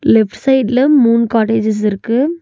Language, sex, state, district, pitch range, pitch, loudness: Tamil, female, Tamil Nadu, Nilgiris, 220-265 Hz, 230 Hz, -13 LUFS